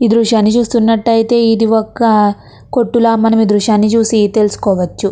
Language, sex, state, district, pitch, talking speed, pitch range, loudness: Telugu, female, Andhra Pradesh, Krishna, 225 Hz, 115 wpm, 215-230 Hz, -12 LUFS